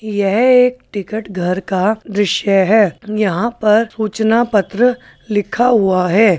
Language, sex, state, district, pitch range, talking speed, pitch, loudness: Hindi, male, Bihar, Madhepura, 195-225 Hz, 130 wpm, 215 Hz, -15 LUFS